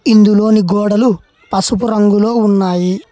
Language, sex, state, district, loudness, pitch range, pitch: Telugu, male, Telangana, Hyderabad, -12 LUFS, 200-220 Hz, 210 Hz